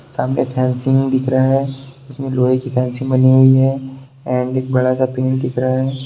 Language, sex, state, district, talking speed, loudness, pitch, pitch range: Hindi, male, Bihar, Sitamarhi, 200 wpm, -16 LUFS, 130 Hz, 130-135 Hz